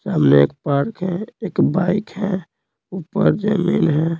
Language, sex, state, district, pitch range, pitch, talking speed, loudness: Hindi, male, Bihar, Patna, 160-200 Hz, 185 Hz, 145 wpm, -19 LUFS